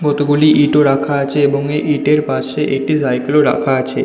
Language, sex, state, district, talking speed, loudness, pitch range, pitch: Bengali, male, West Bengal, North 24 Parganas, 205 wpm, -14 LUFS, 140-150 Hz, 145 Hz